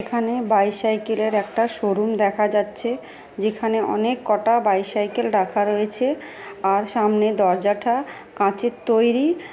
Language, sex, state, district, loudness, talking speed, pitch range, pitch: Bengali, female, West Bengal, Malda, -21 LUFS, 120 wpm, 205-235 Hz, 215 Hz